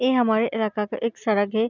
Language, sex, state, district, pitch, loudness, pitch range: Hindi, female, Bihar, Darbhanga, 220 Hz, -23 LUFS, 215-230 Hz